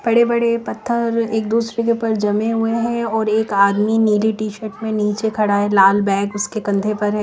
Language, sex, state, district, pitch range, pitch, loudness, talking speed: Hindi, female, Himachal Pradesh, Shimla, 210-230 Hz, 220 Hz, -18 LUFS, 200 wpm